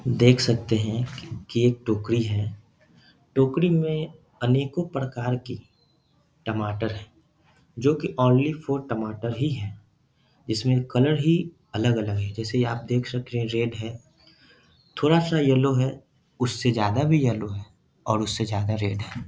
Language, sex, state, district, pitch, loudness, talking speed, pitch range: Hindi, male, Bihar, Bhagalpur, 125 Hz, -24 LUFS, 145 wpm, 110-140 Hz